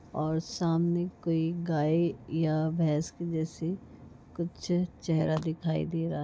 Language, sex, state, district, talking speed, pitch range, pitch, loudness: Hindi, female, West Bengal, Malda, 115 wpm, 155-170 Hz, 165 Hz, -30 LUFS